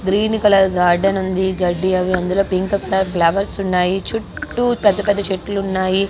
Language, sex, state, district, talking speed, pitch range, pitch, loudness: Telugu, female, Andhra Pradesh, Guntur, 155 wpm, 185-200 Hz, 190 Hz, -17 LUFS